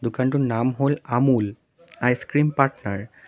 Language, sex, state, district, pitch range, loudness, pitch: Assamese, male, Assam, Sonitpur, 115-140 Hz, -22 LUFS, 130 Hz